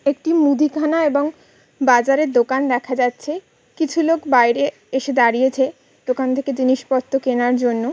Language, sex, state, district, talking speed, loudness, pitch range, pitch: Bengali, female, West Bengal, Kolkata, 130 wpm, -18 LUFS, 250-295 Hz, 265 Hz